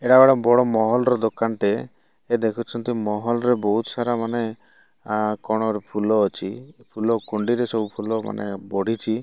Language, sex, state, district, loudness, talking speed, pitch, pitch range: Odia, male, Odisha, Malkangiri, -22 LUFS, 115 wpm, 110 Hz, 105-120 Hz